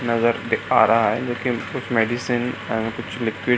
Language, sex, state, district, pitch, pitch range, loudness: Hindi, male, Bihar, Supaul, 120 Hz, 115-125 Hz, -21 LUFS